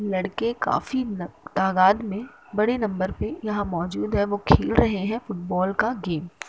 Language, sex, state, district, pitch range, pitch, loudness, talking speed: Hindi, female, Uttar Pradesh, Deoria, 185-215 Hz, 200 Hz, -24 LUFS, 175 wpm